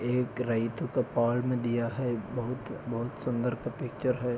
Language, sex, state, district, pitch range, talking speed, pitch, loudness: Hindi, male, Maharashtra, Solapur, 120-125 Hz, 165 wpm, 125 Hz, -31 LUFS